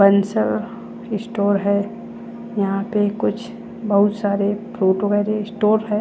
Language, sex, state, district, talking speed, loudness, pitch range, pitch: Hindi, female, Chandigarh, Chandigarh, 130 wpm, -20 LUFS, 200-220 Hz, 210 Hz